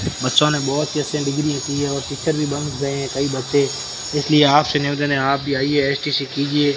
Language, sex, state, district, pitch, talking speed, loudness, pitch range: Hindi, male, Rajasthan, Barmer, 140 Hz, 230 wpm, -19 LUFS, 140-150 Hz